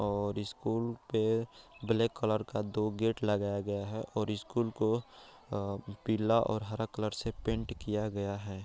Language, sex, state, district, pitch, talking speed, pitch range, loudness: Hindi, male, Bihar, Araria, 110 Hz, 160 wpm, 100-115 Hz, -34 LUFS